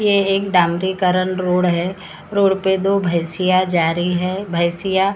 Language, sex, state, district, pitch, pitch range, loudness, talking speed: Hindi, female, Maharashtra, Gondia, 185 Hz, 175-195 Hz, -18 LUFS, 150 wpm